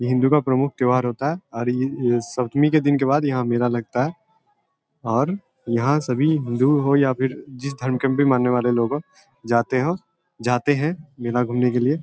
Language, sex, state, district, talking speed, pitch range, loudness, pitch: Hindi, male, Bihar, East Champaran, 205 wpm, 125-145 Hz, -21 LUFS, 130 Hz